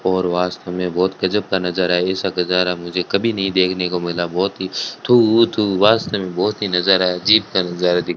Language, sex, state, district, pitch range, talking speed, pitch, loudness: Hindi, male, Rajasthan, Bikaner, 90-100 Hz, 200 wpm, 95 Hz, -18 LUFS